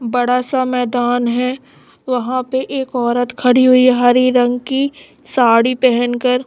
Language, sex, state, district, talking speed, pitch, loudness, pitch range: Hindi, female, Chhattisgarh, Raipur, 140 wpm, 250 Hz, -15 LUFS, 245-255 Hz